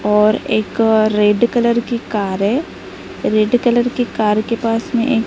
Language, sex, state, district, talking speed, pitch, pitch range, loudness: Hindi, female, Maharashtra, Gondia, 170 wpm, 225 Hz, 215-240 Hz, -16 LUFS